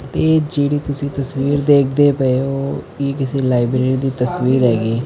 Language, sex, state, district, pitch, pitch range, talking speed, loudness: Punjabi, male, Punjab, Fazilka, 135 Hz, 130-140 Hz, 155 wpm, -17 LUFS